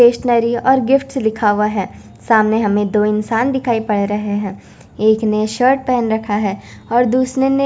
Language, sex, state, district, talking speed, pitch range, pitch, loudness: Hindi, female, Chandigarh, Chandigarh, 190 wpm, 210-250 Hz, 220 Hz, -16 LUFS